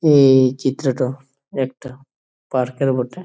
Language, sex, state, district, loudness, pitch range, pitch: Bengali, male, West Bengal, Jhargram, -18 LUFS, 130-140 Hz, 135 Hz